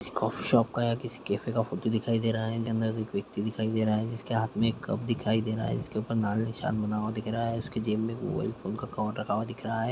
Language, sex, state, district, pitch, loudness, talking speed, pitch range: Hindi, male, Chhattisgarh, Korba, 110 Hz, -30 LUFS, 295 wpm, 110-115 Hz